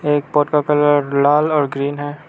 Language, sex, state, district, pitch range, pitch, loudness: Hindi, male, Arunachal Pradesh, Lower Dibang Valley, 145-150 Hz, 145 Hz, -16 LUFS